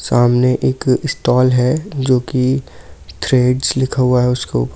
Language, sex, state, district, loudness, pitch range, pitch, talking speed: Hindi, male, Delhi, New Delhi, -15 LUFS, 120-130 Hz, 125 Hz, 150 wpm